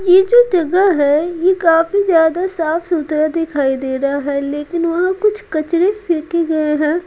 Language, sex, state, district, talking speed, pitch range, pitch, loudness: Hindi, female, Bihar, Patna, 160 wpm, 305-370 Hz, 335 Hz, -15 LUFS